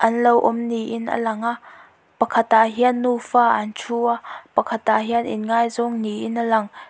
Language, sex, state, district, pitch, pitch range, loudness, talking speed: Mizo, female, Mizoram, Aizawl, 230 Hz, 225-235 Hz, -20 LUFS, 185 wpm